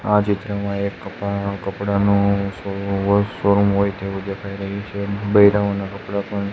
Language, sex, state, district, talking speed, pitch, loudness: Gujarati, male, Gujarat, Gandhinagar, 130 wpm, 100 Hz, -20 LUFS